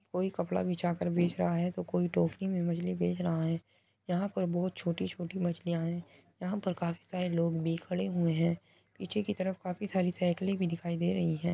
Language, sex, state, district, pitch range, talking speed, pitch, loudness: Hindi, male, Uttar Pradesh, Muzaffarnagar, 170-185 Hz, 210 wpm, 175 Hz, -33 LUFS